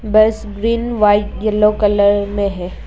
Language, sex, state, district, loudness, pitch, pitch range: Hindi, female, Arunachal Pradesh, Lower Dibang Valley, -15 LUFS, 210 Hz, 205-215 Hz